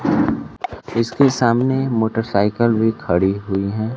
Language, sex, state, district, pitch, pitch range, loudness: Hindi, male, Bihar, Kaimur, 110 Hz, 100-120 Hz, -18 LUFS